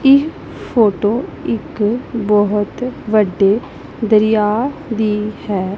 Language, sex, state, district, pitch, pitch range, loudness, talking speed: Punjabi, female, Punjab, Pathankot, 215 Hz, 210-245 Hz, -16 LUFS, 85 wpm